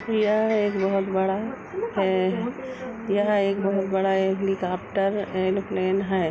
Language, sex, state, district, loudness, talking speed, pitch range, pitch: Hindi, female, Uttar Pradesh, Jalaun, -24 LUFS, 125 wpm, 190-215 Hz, 195 Hz